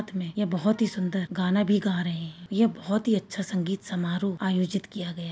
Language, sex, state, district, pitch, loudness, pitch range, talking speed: Hindi, female, Uttar Pradesh, Varanasi, 190 Hz, -27 LUFS, 180-205 Hz, 235 wpm